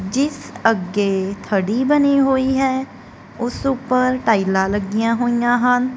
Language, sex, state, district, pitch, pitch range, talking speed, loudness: Punjabi, female, Punjab, Kapurthala, 245 Hz, 205-260 Hz, 120 wpm, -18 LUFS